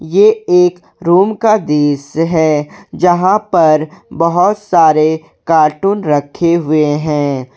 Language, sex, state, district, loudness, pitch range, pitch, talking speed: Hindi, male, Jharkhand, Garhwa, -12 LUFS, 150-180 Hz, 165 Hz, 110 wpm